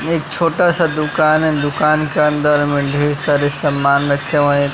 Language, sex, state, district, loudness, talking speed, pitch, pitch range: Hindi, male, Bihar, West Champaran, -15 LUFS, 190 wpm, 150 Hz, 145-155 Hz